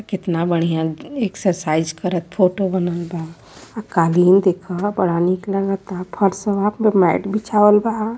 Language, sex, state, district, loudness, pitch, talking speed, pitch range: Awadhi, female, Uttar Pradesh, Varanasi, -18 LUFS, 185 Hz, 130 wpm, 175-205 Hz